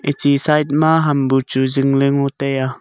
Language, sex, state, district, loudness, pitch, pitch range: Wancho, male, Arunachal Pradesh, Longding, -16 LUFS, 140 Hz, 135-145 Hz